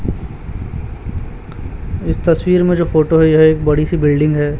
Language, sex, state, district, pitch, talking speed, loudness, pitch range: Hindi, male, Chhattisgarh, Raipur, 155 Hz, 155 wpm, -13 LUFS, 150-165 Hz